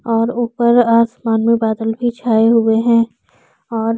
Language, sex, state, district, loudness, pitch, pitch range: Hindi, female, Chhattisgarh, Korba, -15 LUFS, 230 Hz, 225-235 Hz